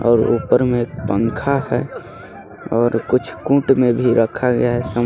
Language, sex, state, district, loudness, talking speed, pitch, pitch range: Hindi, male, Jharkhand, Garhwa, -17 LUFS, 180 wpm, 120 Hz, 115-130 Hz